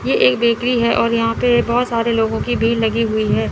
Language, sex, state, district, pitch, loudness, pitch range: Hindi, female, Chandigarh, Chandigarh, 230 Hz, -16 LUFS, 225-235 Hz